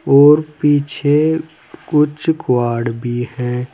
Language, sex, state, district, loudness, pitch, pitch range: Hindi, male, Uttar Pradesh, Saharanpur, -15 LUFS, 145 Hz, 125-155 Hz